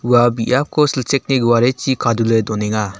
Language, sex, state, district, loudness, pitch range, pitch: Garo, male, Meghalaya, South Garo Hills, -16 LUFS, 115-130 Hz, 120 Hz